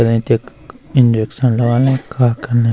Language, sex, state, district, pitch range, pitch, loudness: Garhwali, male, Uttarakhand, Uttarkashi, 115-130 Hz, 120 Hz, -15 LUFS